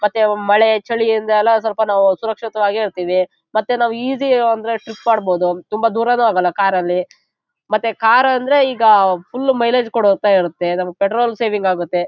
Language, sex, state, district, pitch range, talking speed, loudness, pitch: Kannada, male, Karnataka, Shimoga, 195-230 Hz, 150 wpm, -16 LUFS, 220 Hz